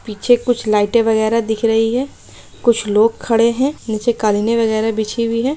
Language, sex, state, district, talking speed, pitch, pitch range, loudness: Hindi, female, Bihar, Araria, 215 wpm, 225 Hz, 220-235 Hz, -16 LUFS